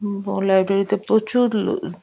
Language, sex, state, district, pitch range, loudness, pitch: Bengali, female, West Bengal, Jhargram, 195-215 Hz, -20 LUFS, 200 Hz